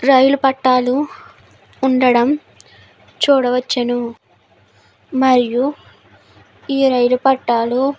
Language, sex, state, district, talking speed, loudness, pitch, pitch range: Telugu, female, Andhra Pradesh, Guntur, 60 wpm, -16 LUFS, 260 Hz, 245-270 Hz